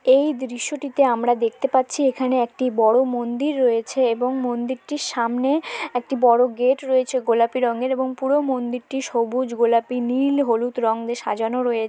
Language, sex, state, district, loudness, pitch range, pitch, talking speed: Bengali, female, West Bengal, Dakshin Dinajpur, -21 LUFS, 240-265 Hz, 250 Hz, 150 wpm